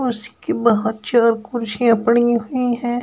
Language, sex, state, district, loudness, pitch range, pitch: Hindi, female, Uttar Pradesh, Shamli, -18 LUFS, 225-245 Hz, 235 Hz